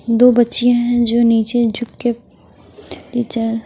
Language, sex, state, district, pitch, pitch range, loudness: Hindi, female, Himachal Pradesh, Shimla, 235 Hz, 230-240 Hz, -15 LUFS